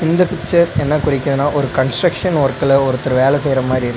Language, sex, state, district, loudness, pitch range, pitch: Tamil, male, Tamil Nadu, Nilgiris, -15 LUFS, 130-160 Hz, 140 Hz